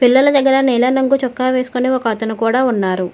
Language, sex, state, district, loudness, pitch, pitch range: Telugu, female, Telangana, Hyderabad, -15 LUFS, 255 Hz, 230-260 Hz